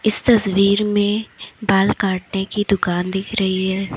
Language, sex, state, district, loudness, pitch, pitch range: Hindi, female, Uttar Pradesh, Lalitpur, -18 LUFS, 195 Hz, 190-210 Hz